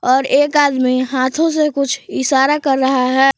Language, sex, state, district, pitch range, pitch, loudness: Hindi, female, Jharkhand, Palamu, 260-290 Hz, 270 Hz, -15 LUFS